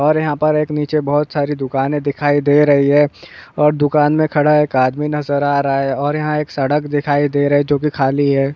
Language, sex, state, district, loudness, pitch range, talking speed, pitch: Hindi, male, West Bengal, Purulia, -16 LUFS, 145-150 Hz, 240 wpm, 145 Hz